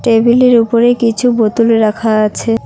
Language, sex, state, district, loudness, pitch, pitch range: Bengali, female, West Bengal, Cooch Behar, -11 LUFS, 230 Hz, 225-240 Hz